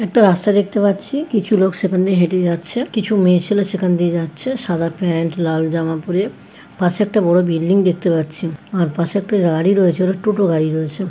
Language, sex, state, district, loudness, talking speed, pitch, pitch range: Bengali, female, West Bengal, Paschim Medinipur, -17 LUFS, 185 wpm, 185 Hz, 170-205 Hz